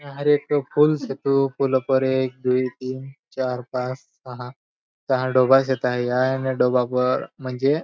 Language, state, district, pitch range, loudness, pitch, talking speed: Bhili, Maharashtra, Dhule, 125-135 Hz, -22 LUFS, 130 Hz, 145 wpm